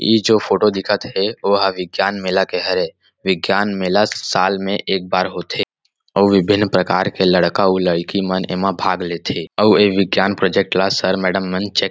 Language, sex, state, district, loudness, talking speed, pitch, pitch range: Chhattisgarhi, male, Chhattisgarh, Rajnandgaon, -17 LUFS, 195 wpm, 95 Hz, 95-100 Hz